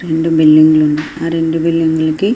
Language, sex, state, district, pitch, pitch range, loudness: Telugu, female, Andhra Pradesh, Srikakulam, 160 Hz, 155-165 Hz, -12 LUFS